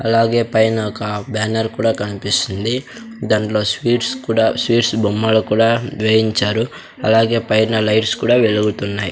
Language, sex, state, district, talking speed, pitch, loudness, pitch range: Telugu, male, Andhra Pradesh, Sri Satya Sai, 120 wpm, 110 Hz, -17 LUFS, 105-115 Hz